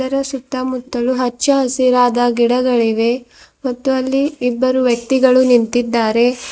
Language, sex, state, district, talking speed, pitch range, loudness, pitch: Kannada, female, Karnataka, Bidar, 90 wpm, 245-260 Hz, -15 LUFS, 255 Hz